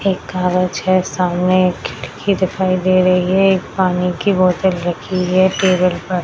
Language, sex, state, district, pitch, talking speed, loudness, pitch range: Hindi, female, Bihar, Madhepura, 185 Hz, 175 wpm, -16 LUFS, 180-185 Hz